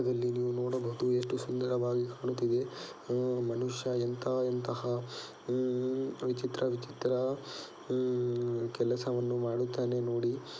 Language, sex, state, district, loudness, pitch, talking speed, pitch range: Kannada, male, Karnataka, Dakshina Kannada, -33 LUFS, 125 Hz, 85 wpm, 120-125 Hz